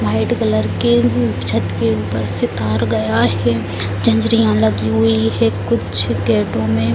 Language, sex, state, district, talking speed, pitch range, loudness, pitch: Hindi, female, Bihar, Gopalganj, 155 wpm, 105-115 Hz, -16 LUFS, 110 Hz